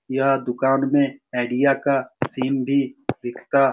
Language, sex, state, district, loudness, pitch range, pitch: Hindi, male, Bihar, Saran, -22 LUFS, 130-140 Hz, 135 Hz